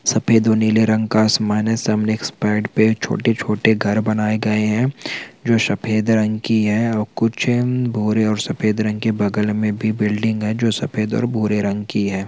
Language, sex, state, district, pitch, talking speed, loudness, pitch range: Hindi, male, Chhattisgarh, Balrampur, 110 Hz, 190 wpm, -18 LUFS, 105-110 Hz